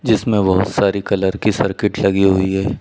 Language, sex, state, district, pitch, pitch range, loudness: Hindi, male, Uttar Pradesh, Ghazipur, 100 Hz, 95-105 Hz, -16 LUFS